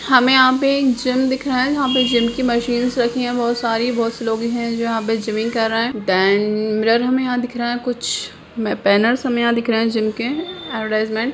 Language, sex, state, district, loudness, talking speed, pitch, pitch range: Hindi, female, Bihar, Jamui, -18 LUFS, 240 wpm, 235 Hz, 225-255 Hz